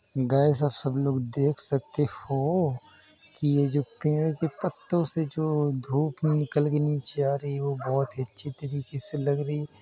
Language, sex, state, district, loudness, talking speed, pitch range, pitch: Hindi, male, Uttar Pradesh, Hamirpur, -27 LUFS, 195 wpm, 135-150 Hz, 145 Hz